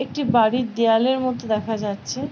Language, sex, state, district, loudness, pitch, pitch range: Bengali, female, West Bengal, Paschim Medinipur, -21 LUFS, 235 Hz, 220-255 Hz